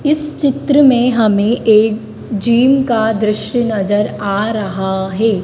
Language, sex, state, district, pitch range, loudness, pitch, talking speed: Hindi, female, Madhya Pradesh, Dhar, 210-250 Hz, -14 LUFS, 220 Hz, 130 wpm